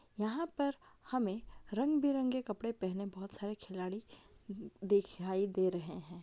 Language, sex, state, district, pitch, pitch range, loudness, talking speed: Maithili, female, Bihar, Darbhanga, 205 Hz, 190-255 Hz, -37 LUFS, 145 wpm